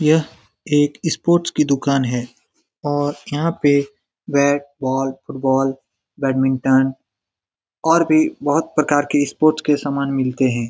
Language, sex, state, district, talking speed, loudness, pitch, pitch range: Hindi, male, Bihar, Lakhisarai, 130 wpm, -18 LUFS, 140 Hz, 130-150 Hz